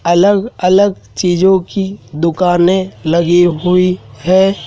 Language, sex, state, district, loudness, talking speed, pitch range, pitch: Hindi, male, Madhya Pradesh, Dhar, -13 LUFS, 105 wpm, 175-190 Hz, 180 Hz